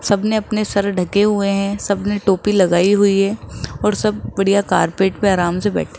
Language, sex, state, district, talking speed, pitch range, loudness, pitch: Hindi, male, Rajasthan, Jaipur, 220 wpm, 190-205 Hz, -17 LUFS, 200 Hz